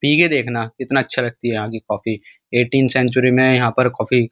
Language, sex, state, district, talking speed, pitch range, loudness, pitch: Hindi, male, Uttar Pradesh, Muzaffarnagar, 250 wpm, 115-130 Hz, -17 LUFS, 125 Hz